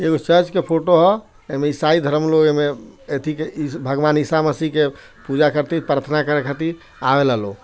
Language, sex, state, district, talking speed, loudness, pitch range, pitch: Bhojpuri, male, Bihar, Gopalganj, 190 wpm, -18 LUFS, 140-160 Hz, 150 Hz